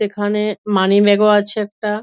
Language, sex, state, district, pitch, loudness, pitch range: Bengali, female, West Bengal, Dakshin Dinajpur, 210 Hz, -15 LUFS, 205-210 Hz